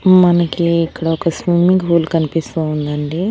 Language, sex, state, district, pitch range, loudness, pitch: Telugu, female, Andhra Pradesh, Annamaya, 160-175 Hz, -15 LUFS, 170 Hz